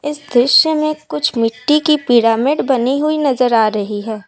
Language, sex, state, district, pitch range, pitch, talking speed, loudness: Hindi, female, Assam, Kamrup Metropolitan, 225-295 Hz, 250 Hz, 180 wpm, -14 LUFS